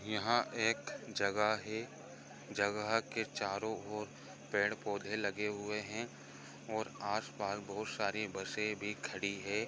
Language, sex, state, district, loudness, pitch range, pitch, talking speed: Hindi, male, Andhra Pradesh, Guntur, -38 LUFS, 100-110 Hz, 105 Hz, 140 wpm